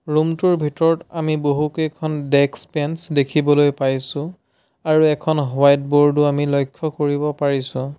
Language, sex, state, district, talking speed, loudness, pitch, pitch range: Assamese, male, Assam, Sonitpur, 135 wpm, -19 LUFS, 145 Hz, 140-155 Hz